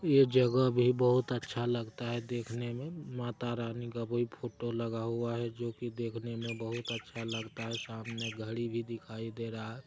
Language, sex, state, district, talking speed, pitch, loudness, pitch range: Hindi, male, Bihar, Araria, 195 wpm, 120 Hz, -34 LUFS, 115-120 Hz